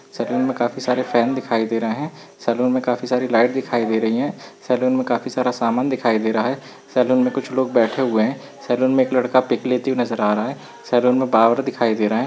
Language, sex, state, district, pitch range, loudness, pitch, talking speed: Hindi, male, Uttarakhand, Uttarkashi, 115-130 Hz, -19 LUFS, 125 Hz, 255 wpm